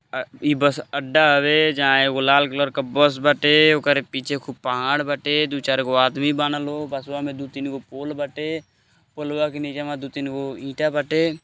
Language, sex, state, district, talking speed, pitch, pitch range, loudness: Bhojpuri, male, Uttar Pradesh, Gorakhpur, 205 wpm, 145 Hz, 140-150 Hz, -20 LUFS